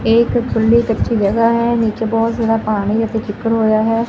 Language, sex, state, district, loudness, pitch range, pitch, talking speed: Punjabi, female, Punjab, Fazilka, -15 LUFS, 220-230 Hz, 225 Hz, 190 wpm